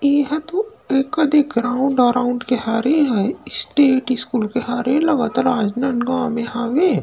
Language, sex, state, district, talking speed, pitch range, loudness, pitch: Chhattisgarhi, male, Chhattisgarh, Rajnandgaon, 145 wpm, 245-290 Hz, -18 LUFS, 255 Hz